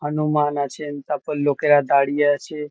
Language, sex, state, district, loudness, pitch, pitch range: Bengali, male, West Bengal, Kolkata, -20 LUFS, 145 Hz, 145-150 Hz